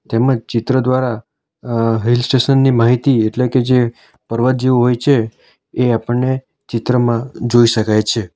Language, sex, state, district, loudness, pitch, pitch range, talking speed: Gujarati, male, Gujarat, Valsad, -15 LUFS, 120 Hz, 115-130 Hz, 150 wpm